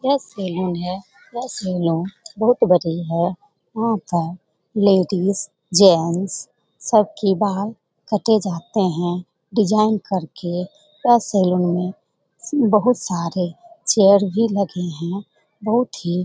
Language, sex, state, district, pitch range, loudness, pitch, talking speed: Hindi, female, Bihar, Jamui, 175-215 Hz, -20 LUFS, 195 Hz, 120 wpm